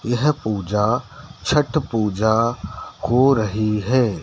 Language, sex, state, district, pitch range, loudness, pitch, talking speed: Hindi, male, Madhya Pradesh, Dhar, 105-130 Hz, -20 LUFS, 115 Hz, 100 wpm